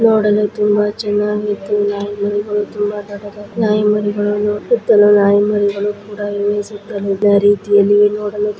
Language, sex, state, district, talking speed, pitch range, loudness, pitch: Kannada, female, Karnataka, Bellary, 85 wpm, 205-210 Hz, -15 LUFS, 205 Hz